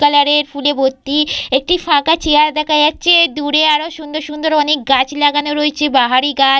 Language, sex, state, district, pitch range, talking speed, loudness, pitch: Bengali, female, West Bengal, Purulia, 285-305 Hz, 175 wpm, -13 LUFS, 295 Hz